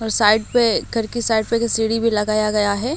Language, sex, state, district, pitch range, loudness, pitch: Hindi, female, Odisha, Malkangiri, 215-230 Hz, -18 LUFS, 225 Hz